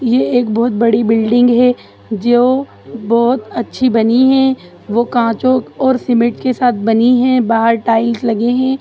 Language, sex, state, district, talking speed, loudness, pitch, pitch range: Hindi, female, Bihar, Jahanabad, 155 wpm, -13 LUFS, 240 Hz, 230-250 Hz